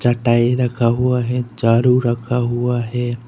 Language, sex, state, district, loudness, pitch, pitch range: Hindi, male, Arunachal Pradesh, Papum Pare, -17 LUFS, 120 Hz, 120-125 Hz